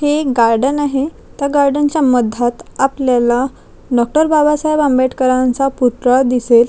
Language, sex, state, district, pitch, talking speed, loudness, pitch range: Marathi, female, Maharashtra, Chandrapur, 265 Hz, 125 wpm, -14 LUFS, 245-290 Hz